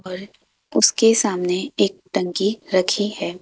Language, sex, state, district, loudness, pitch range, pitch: Hindi, female, Madhya Pradesh, Bhopal, -19 LUFS, 185-205 Hz, 195 Hz